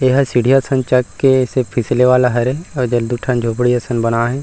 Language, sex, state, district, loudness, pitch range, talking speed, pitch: Chhattisgarhi, male, Chhattisgarh, Rajnandgaon, -15 LUFS, 120-130 Hz, 230 wpm, 125 Hz